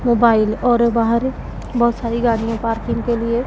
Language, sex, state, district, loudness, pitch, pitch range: Hindi, female, Punjab, Pathankot, -18 LUFS, 235 Hz, 230-240 Hz